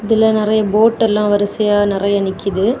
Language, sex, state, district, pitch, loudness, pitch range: Tamil, female, Tamil Nadu, Kanyakumari, 210 Hz, -15 LUFS, 200-220 Hz